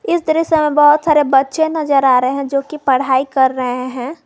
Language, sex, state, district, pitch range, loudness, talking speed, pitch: Hindi, female, Jharkhand, Garhwa, 260-310 Hz, -14 LUFS, 225 wpm, 280 Hz